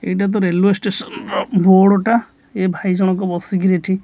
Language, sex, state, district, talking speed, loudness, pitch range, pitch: Odia, male, Odisha, Khordha, 180 wpm, -16 LUFS, 185-200 Hz, 190 Hz